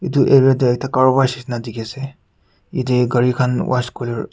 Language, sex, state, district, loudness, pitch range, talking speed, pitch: Nagamese, male, Nagaland, Kohima, -17 LUFS, 120-135 Hz, 165 wpm, 125 Hz